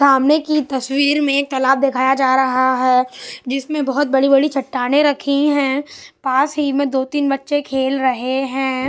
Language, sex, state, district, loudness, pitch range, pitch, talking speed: Hindi, male, Bihar, West Champaran, -17 LUFS, 265-285 Hz, 270 Hz, 160 wpm